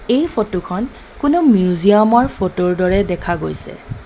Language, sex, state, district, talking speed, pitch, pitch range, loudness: Assamese, female, Assam, Kamrup Metropolitan, 165 wpm, 190 Hz, 180-235 Hz, -16 LUFS